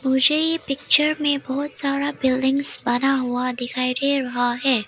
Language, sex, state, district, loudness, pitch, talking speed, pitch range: Hindi, female, Arunachal Pradesh, Lower Dibang Valley, -20 LUFS, 270 Hz, 160 wpm, 255-285 Hz